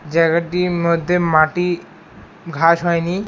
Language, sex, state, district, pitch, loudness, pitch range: Bengali, male, West Bengal, Alipurduar, 170 Hz, -17 LUFS, 165-175 Hz